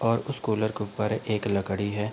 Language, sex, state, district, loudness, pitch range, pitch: Hindi, male, Uttar Pradesh, Budaun, -28 LUFS, 100-110 Hz, 105 Hz